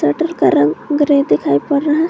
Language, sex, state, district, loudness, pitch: Hindi, female, Jharkhand, Garhwa, -14 LUFS, 285 Hz